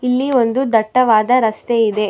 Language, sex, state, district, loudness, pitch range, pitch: Kannada, female, Karnataka, Bangalore, -15 LUFS, 220-255 Hz, 235 Hz